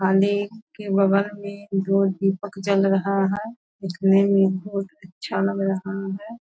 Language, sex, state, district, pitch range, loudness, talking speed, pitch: Hindi, female, Bihar, Purnia, 195-200 Hz, -22 LUFS, 165 wpm, 195 Hz